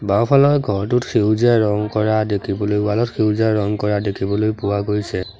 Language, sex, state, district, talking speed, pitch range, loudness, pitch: Assamese, male, Assam, Sonitpur, 155 wpm, 100-110 Hz, -18 LUFS, 105 Hz